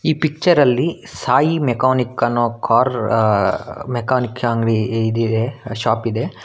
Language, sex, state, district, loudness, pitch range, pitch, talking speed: Kannada, male, Karnataka, Bangalore, -18 LUFS, 115-130 Hz, 120 Hz, 110 wpm